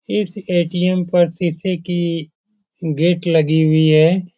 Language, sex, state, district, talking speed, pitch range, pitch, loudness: Hindi, male, Bihar, Supaul, 125 wpm, 160-185 Hz, 175 Hz, -17 LUFS